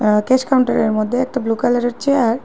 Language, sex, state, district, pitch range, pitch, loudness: Bengali, female, Assam, Hailakandi, 225-260 Hz, 245 Hz, -17 LUFS